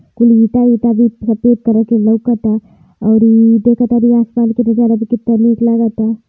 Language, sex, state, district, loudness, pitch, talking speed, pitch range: Hindi, female, Uttar Pradesh, Varanasi, -11 LUFS, 230 Hz, 190 wpm, 225-235 Hz